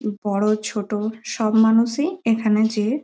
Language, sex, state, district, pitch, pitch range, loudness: Bengali, female, West Bengal, Malda, 220 Hz, 215-230 Hz, -20 LUFS